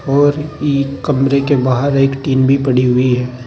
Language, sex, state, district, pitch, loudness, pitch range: Hindi, male, Uttar Pradesh, Saharanpur, 135 Hz, -14 LUFS, 130-140 Hz